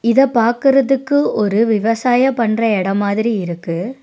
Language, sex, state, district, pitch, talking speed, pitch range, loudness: Tamil, female, Tamil Nadu, Nilgiris, 230 Hz, 120 wpm, 210-260 Hz, -15 LUFS